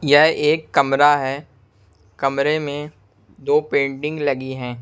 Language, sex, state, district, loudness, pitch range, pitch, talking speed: Hindi, male, Punjab, Kapurthala, -19 LUFS, 130-150 Hz, 140 Hz, 125 wpm